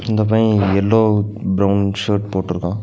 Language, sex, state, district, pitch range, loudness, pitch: Tamil, male, Tamil Nadu, Nilgiris, 100-110 Hz, -17 LUFS, 100 Hz